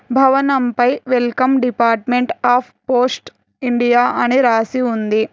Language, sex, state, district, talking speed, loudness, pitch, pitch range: Telugu, female, Telangana, Hyderabad, 110 wpm, -16 LUFS, 245 Hz, 240-255 Hz